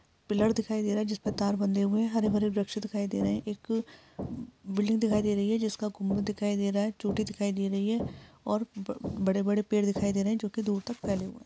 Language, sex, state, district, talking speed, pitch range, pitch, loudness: Hindi, female, Chhattisgarh, Sarguja, 270 wpm, 200-215 Hz, 210 Hz, -30 LUFS